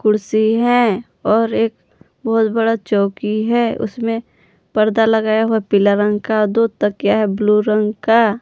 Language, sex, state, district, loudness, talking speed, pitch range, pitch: Hindi, female, Jharkhand, Palamu, -16 LUFS, 150 wpm, 210-225 Hz, 220 Hz